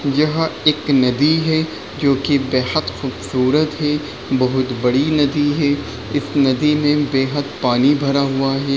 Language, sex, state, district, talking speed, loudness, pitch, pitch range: Hindi, male, Bihar, Lakhisarai, 145 wpm, -17 LUFS, 140 Hz, 130-150 Hz